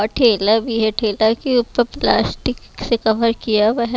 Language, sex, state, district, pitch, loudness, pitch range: Hindi, female, Bihar, West Champaran, 225 Hz, -17 LUFS, 220-235 Hz